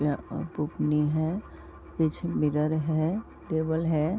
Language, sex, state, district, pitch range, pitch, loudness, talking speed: Hindi, female, Uttar Pradesh, Varanasi, 150-160 Hz, 155 Hz, -28 LUFS, 130 wpm